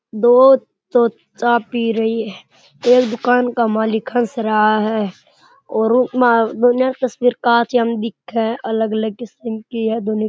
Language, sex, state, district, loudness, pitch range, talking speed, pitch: Rajasthani, male, Rajasthan, Churu, -17 LUFS, 220-245 Hz, 165 wpm, 230 Hz